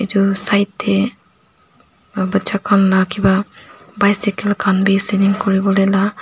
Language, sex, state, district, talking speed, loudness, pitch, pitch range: Nagamese, female, Nagaland, Dimapur, 135 wpm, -15 LUFS, 200 Hz, 195-205 Hz